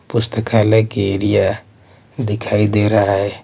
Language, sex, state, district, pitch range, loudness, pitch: Hindi, male, Maharashtra, Mumbai Suburban, 100-110 Hz, -16 LUFS, 105 Hz